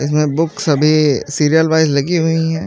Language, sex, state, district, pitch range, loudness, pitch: Hindi, male, Maharashtra, Mumbai Suburban, 150-160 Hz, -14 LUFS, 155 Hz